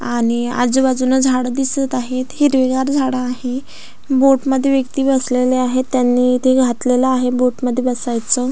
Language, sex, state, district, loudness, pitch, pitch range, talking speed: Marathi, female, Maharashtra, Aurangabad, -16 LUFS, 255 Hz, 250-265 Hz, 140 wpm